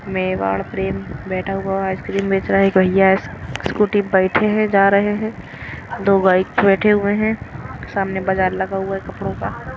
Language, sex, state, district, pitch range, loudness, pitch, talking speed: Hindi, female, Haryana, Rohtak, 190-200 Hz, -18 LUFS, 195 Hz, 170 wpm